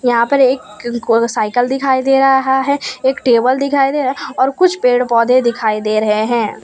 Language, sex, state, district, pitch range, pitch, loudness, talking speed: Hindi, female, Gujarat, Valsad, 235-270 Hz, 255 Hz, -14 LUFS, 210 wpm